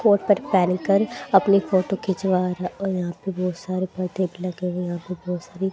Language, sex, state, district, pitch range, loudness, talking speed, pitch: Hindi, female, Haryana, Charkhi Dadri, 180-195 Hz, -23 LUFS, 155 wpm, 185 Hz